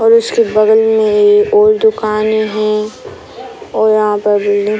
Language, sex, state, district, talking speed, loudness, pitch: Hindi, female, Bihar, Sitamarhi, 165 wpm, -11 LUFS, 215 Hz